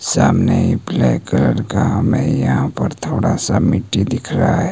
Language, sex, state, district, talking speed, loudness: Hindi, male, Himachal Pradesh, Shimla, 165 wpm, -16 LUFS